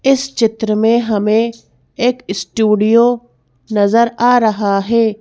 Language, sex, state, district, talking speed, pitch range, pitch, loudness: Hindi, female, Madhya Pradesh, Bhopal, 115 wpm, 210-235 Hz, 225 Hz, -14 LUFS